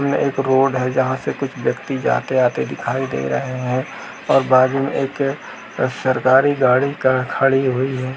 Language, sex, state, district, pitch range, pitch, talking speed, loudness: Hindi, male, Uttar Pradesh, Jalaun, 130-135 Hz, 130 Hz, 190 wpm, -18 LUFS